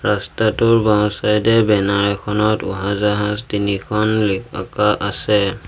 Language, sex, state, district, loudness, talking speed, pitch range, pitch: Assamese, male, Assam, Sonitpur, -17 LUFS, 95 wpm, 100-110 Hz, 105 Hz